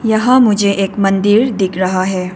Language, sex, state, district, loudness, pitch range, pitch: Hindi, female, Arunachal Pradesh, Papum Pare, -13 LUFS, 190-220 Hz, 200 Hz